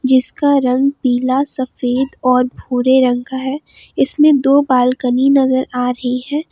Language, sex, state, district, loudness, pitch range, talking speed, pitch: Hindi, female, Jharkhand, Palamu, -15 LUFS, 250-275 Hz, 145 wpm, 260 Hz